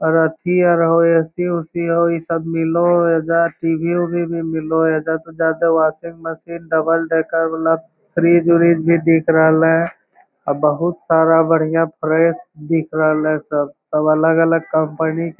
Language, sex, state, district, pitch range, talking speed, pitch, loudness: Hindi, male, Bihar, Lakhisarai, 160-170 Hz, 170 wpm, 165 Hz, -16 LUFS